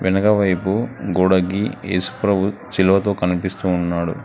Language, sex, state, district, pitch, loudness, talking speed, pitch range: Telugu, male, Telangana, Hyderabad, 95 Hz, -19 LUFS, 85 wpm, 90-100 Hz